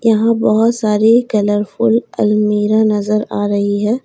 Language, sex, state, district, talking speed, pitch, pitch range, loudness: Hindi, female, Uttar Pradesh, Lalitpur, 135 wpm, 215 Hz, 210-225 Hz, -14 LUFS